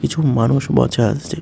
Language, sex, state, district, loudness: Bengali, male, Tripura, West Tripura, -17 LUFS